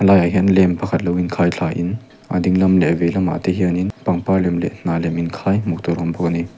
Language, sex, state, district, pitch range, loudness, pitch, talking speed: Mizo, male, Mizoram, Aizawl, 85-95 Hz, -18 LUFS, 90 Hz, 280 wpm